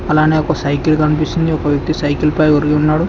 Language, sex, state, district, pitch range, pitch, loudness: Telugu, male, Telangana, Hyderabad, 150-155 Hz, 155 Hz, -14 LUFS